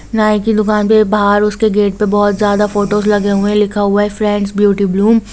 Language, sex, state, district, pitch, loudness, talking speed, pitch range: Hindi, female, Jharkhand, Jamtara, 210 Hz, -12 LUFS, 225 wpm, 205-210 Hz